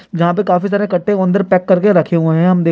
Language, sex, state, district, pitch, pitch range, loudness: Hindi, male, Bihar, Kishanganj, 185 Hz, 175-200 Hz, -13 LUFS